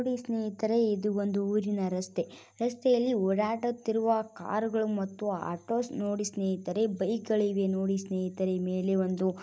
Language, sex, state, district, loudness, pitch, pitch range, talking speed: Kannada, female, Karnataka, Bijapur, -30 LUFS, 205 Hz, 190-225 Hz, 125 wpm